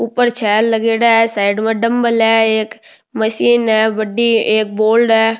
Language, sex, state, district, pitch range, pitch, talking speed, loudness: Rajasthani, male, Rajasthan, Nagaur, 220-230 Hz, 225 Hz, 165 wpm, -13 LUFS